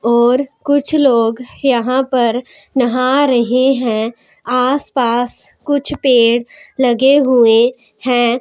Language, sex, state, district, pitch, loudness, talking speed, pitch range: Hindi, female, Punjab, Pathankot, 250 Hz, -14 LUFS, 100 wpm, 235-270 Hz